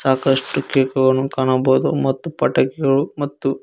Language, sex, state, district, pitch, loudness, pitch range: Kannada, male, Karnataka, Koppal, 135 Hz, -18 LUFS, 130-140 Hz